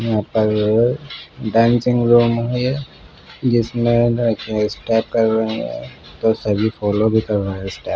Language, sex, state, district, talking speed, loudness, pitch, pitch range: Hindi, male, Bihar, Patna, 145 wpm, -18 LUFS, 115 Hz, 110-120 Hz